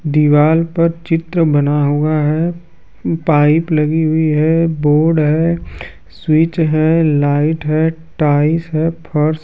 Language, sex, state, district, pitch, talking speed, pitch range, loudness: Hindi, male, Bihar, Kaimur, 155 Hz, 125 wpm, 150-165 Hz, -14 LUFS